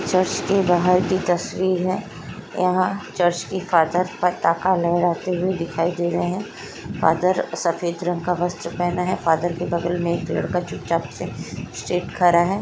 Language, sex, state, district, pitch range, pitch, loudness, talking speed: Hindi, female, Chhattisgarh, Raigarh, 170-185 Hz, 175 Hz, -22 LUFS, 165 wpm